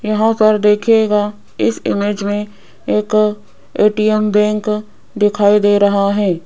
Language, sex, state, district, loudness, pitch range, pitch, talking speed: Hindi, female, Rajasthan, Jaipur, -14 LUFS, 205-215 Hz, 210 Hz, 120 wpm